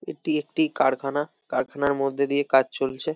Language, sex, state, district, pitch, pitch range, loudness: Bengali, male, West Bengal, North 24 Parganas, 140 Hz, 135-150 Hz, -24 LUFS